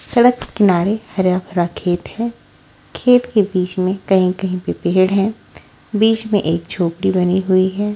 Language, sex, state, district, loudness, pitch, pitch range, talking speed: Hindi, female, Haryana, Rohtak, -17 LUFS, 190 Hz, 185-210 Hz, 165 wpm